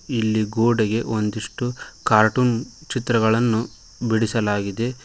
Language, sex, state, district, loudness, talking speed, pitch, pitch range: Kannada, male, Karnataka, Koppal, -21 LUFS, 70 wpm, 115 Hz, 110-120 Hz